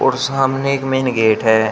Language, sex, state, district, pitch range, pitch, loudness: Hindi, male, Uttar Pradesh, Shamli, 110-135 Hz, 130 Hz, -16 LUFS